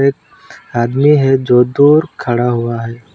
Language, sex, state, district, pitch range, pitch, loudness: Hindi, male, West Bengal, Alipurduar, 120-140 Hz, 125 Hz, -13 LUFS